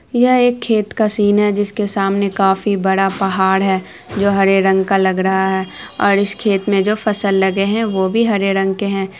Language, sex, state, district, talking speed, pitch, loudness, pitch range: Hindi, female, Bihar, Araria, 180 wpm, 195 Hz, -15 LUFS, 195-210 Hz